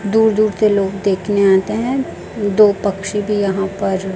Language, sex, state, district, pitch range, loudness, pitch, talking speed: Hindi, female, Chhattisgarh, Raipur, 195-215 Hz, -16 LUFS, 200 Hz, 175 wpm